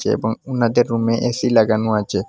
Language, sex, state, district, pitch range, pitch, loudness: Bengali, male, Assam, Hailakandi, 110-120 Hz, 115 Hz, -18 LUFS